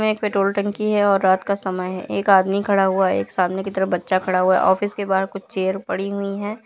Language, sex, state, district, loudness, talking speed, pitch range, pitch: Hindi, female, Bihar, Madhepura, -20 LUFS, 290 wpm, 190-200 Hz, 195 Hz